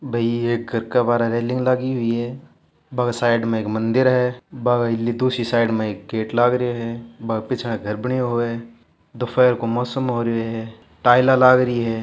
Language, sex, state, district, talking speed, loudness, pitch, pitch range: Hindi, male, Rajasthan, Churu, 210 wpm, -20 LUFS, 120 Hz, 115-125 Hz